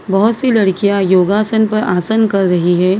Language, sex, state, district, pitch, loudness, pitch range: Hindi, female, Maharashtra, Mumbai Suburban, 200 Hz, -13 LUFS, 185-220 Hz